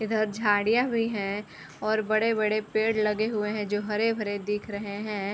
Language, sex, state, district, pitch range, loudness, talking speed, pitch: Hindi, female, Bihar, Sitamarhi, 205-220 Hz, -27 LUFS, 170 wpm, 215 Hz